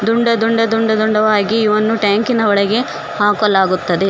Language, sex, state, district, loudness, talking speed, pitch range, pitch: Kannada, female, Karnataka, Koppal, -14 LUFS, 130 wpm, 205-225 Hz, 215 Hz